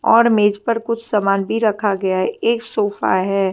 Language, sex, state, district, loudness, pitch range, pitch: Hindi, female, Punjab, Fazilka, -18 LUFS, 195-230 Hz, 210 Hz